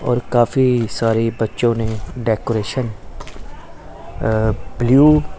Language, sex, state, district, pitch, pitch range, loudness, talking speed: Hindi, male, Punjab, Pathankot, 115 Hz, 110-120 Hz, -18 LUFS, 100 wpm